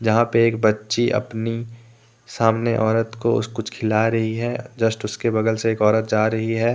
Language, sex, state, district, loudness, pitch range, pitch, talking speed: Hindi, male, Jharkhand, Deoghar, -21 LUFS, 110-115 Hz, 115 Hz, 185 wpm